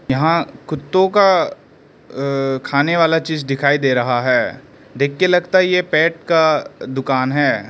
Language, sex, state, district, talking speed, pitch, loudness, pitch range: Hindi, male, Arunachal Pradesh, Lower Dibang Valley, 150 wpm, 155 Hz, -16 LUFS, 135-170 Hz